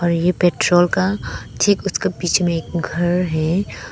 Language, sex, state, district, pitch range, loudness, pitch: Hindi, female, Arunachal Pradesh, Papum Pare, 170-185 Hz, -18 LUFS, 175 Hz